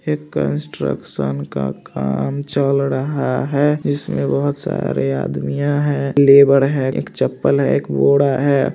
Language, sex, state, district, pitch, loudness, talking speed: Hindi, male, Jharkhand, Jamtara, 130 Hz, -17 LUFS, 135 wpm